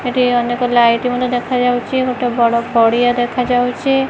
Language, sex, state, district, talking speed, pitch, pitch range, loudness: Odia, female, Odisha, Khordha, 175 wpm, 245 Hz, 240-250 Hz, -15 LUFS